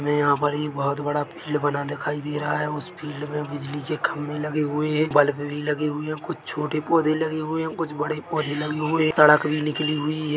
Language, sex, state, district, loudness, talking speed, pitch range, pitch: Hindi, male, Chhattisgarh, Bilaspur, -24 LUFS, 250 wpm, 145-155 Hz, 150 Hz